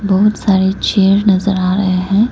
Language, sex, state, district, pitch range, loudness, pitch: Hindi, female, Arunachal Pradesh, Lower Dibang Valley, 190-200 Hz, -13 LUFS, 195 Hz